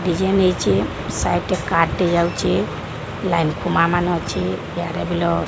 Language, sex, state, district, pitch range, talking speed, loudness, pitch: Odia, female, Odisha, Sambalpur, 165-185 Hz, 100 wpm, -20 LUFS, 175 Hz